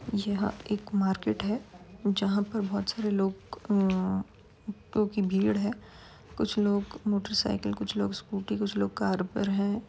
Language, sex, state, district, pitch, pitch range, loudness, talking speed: Hindi, female, Uttar Pradesh, Varanasi, 200 Hz, 190-210 Hz, -30 LUFS, 145 wpm